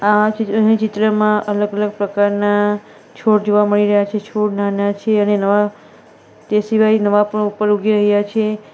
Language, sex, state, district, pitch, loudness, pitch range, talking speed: Gujarati, female, Gujarat, Valsad, 210 Hz, -16 LUFS, 205-215 Hz, 165 wpm